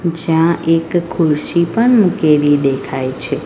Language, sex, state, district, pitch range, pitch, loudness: Gujarati, female, Gujarat, Valsad, 150-170 Hz, 165 Hz, -14 LUFS